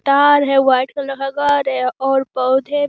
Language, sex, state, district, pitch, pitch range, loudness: Hindi, female, Bihar, Jamui, 275 Hz, 265-285 Hz, -16 LUFS